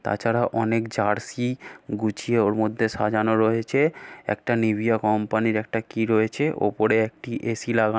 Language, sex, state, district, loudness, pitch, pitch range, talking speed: Bengali, male, West Bengal, Malda, -24 LUFS, 110 Hz, 110-115 Hz, 150 wpm